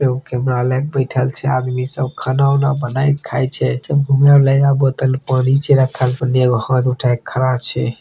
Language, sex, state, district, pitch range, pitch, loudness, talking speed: Maithili, male, Bihar, Begusarai, 125-140 Hz, 130 Hz, -15 LUFS, 170 wpm